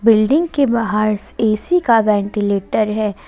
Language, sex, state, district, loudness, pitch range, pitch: Hindi, female, Jharkhand, Ranchi, -16 LUFS, 210-230 Hz, 215 Hz